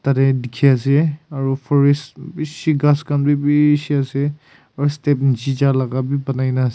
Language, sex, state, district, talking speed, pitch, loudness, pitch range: Nagamese, male, Nagaland, Kohima, 180 wpm, 140 Hz, -18 LUFS, 135-145 Hz